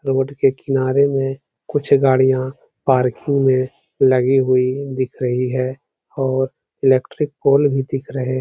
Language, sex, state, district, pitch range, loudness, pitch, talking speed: Hindi, male, Uttar Pradesh, Hamirpur, 130-135 Hz, -18 LUFS, 135 Hz, 140 wpm